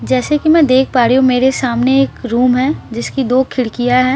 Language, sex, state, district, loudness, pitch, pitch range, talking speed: Hindi, female, Bihar, Patna, -13 LUFS, 255 Hz, 250-265 Hz, 260 wpm